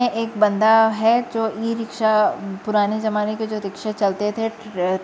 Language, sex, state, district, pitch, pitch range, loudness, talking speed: Hindi, female, Uttar Pradesh, Jyotiba Phule Nagar, 215 Hz, 210-225 Hz, -20 LUFS, 165 wpm